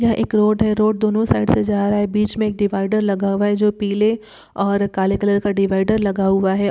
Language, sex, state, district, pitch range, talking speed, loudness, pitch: Hindi, female, Bihar, Araria, 200-215 Hz, 250 wpm, -18 LUFS, 205 Hz